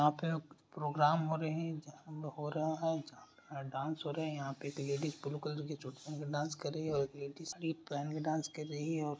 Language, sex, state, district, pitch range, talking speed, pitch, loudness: Hindi, male, Bihar, Bhagalpur, 145-155 Hz, 215 wpm, 150 Hz, -39 LUFS